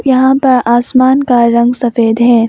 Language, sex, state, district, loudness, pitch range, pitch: Hindi, female, Arunachal Pradesh, Longding, -10 LUFS, 235-260 Hz, 245 Hz